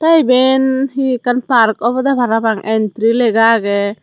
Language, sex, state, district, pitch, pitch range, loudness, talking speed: Chakma, female, Tripura, Dhalai, 240 Hz, 225-260 Hz, -13 LUFS, 165 wpm